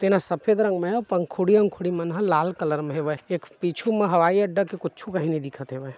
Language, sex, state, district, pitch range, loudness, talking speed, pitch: Chhattisgarhi, male, Chhattisgarh, Bilaspur, 160-200 Hz, -24 LUFS, 250 wpm, 180 Hz